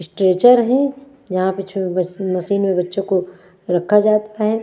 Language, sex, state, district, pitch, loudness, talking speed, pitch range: Hindi, female, Bihar, West Champaran, 195 Hz, -17 LUFS, 155 wpm, 185-215 Hz